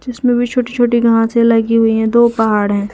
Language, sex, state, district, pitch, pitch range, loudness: Hindi, female, Madhya Pradesh, Umaria, 230 Hz, 225-240 Hz, -13 LUFS